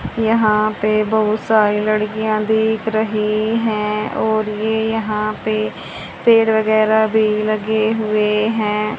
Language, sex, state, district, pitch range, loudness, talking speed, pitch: Hindi, female, Haryana, Charkhi Dadri, 215-220 Hz, -17 LUFS, 120 wpm, 215 Hz